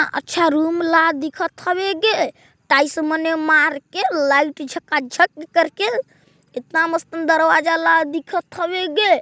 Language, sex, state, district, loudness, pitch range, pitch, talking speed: Hindi, female, Chhattisgarh, Balrampur, -18 LUFS, 310-340 Hz, 325 Hz, 145 wpm